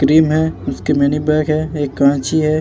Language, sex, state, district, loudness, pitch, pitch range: Hindi, male, Bihar, Vaishali, -16 LUFS, 155 Hz, 145-155 Hz